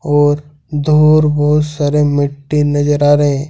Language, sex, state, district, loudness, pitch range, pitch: Hindi, male, Jharkhand, Ranchi, -13 LUFS, 145-150 Hz, 145 Hz